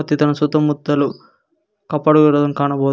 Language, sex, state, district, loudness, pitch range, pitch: Kannada, male, Karnataka, Koppal, -16 LUFS, 145-155 Hz, 150 Hz